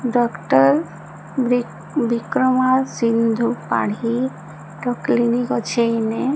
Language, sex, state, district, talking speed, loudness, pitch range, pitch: Odia, female, Odisha, Sambalpur, 85 wpm, -19 LUFS, 220-250 Hz, 235 Hz